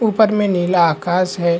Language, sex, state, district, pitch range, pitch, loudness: Hindi, male, Chhattisgarh, Raigarh, 175-210 Hz, 180 Hz, -16 LUFS